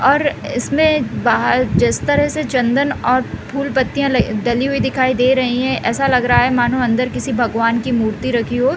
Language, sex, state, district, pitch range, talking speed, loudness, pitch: Hindi, female, Uttar Pradesh, Deoria, 240-275 Hz, 190 wpm, -16 LUFS, 255 Hz